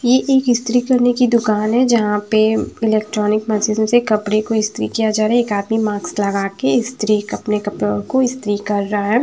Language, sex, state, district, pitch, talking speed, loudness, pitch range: Hindi, female, Bihar, Patna, 215 Hz, 210 wpm, -17 LUFS, 210-240 Hz